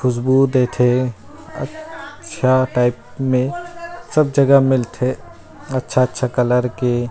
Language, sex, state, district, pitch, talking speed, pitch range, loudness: Chhattisgarhi, male, Chhattisgarh, Rajnandgaon, 130 Hz, 95 wpm, 125-135 Hz, -18 LUFS